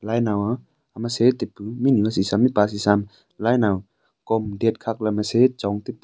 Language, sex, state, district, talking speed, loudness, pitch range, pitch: Wancho, male, Arunachal Pradesh, Longding, 180 wpm, -22 LUFS, 105-115 Hz, 110 Hz